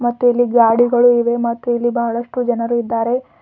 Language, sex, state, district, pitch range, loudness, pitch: Kannada, female, Karnataka, Bidar, 235-245 Hz, -16 LUFS, 240 Hz